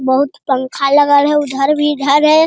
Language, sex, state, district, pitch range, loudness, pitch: Hindi, male, Bihar, Jamui, 275-295 Hz, -13 LUFS, 285 Hz